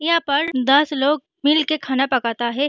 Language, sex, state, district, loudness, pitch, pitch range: Hindi, female, Bihar, Begusarai, -19 LUFS, 285 Hz, 265-310 Hz